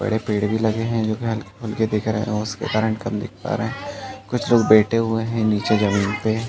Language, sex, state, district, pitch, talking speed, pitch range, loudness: Hindi, male, Uttar Pradesh, Jalaun, 110 Hz, 240 wpm, 105-115 Hz, -21 LUFS